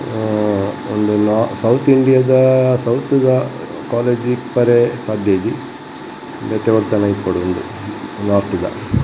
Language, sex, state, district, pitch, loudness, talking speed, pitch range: Tulu, male, Karnataka, Dakshina Kannada, 110 Hz, -16 LUFS, 120 wpm, 105-125 Hz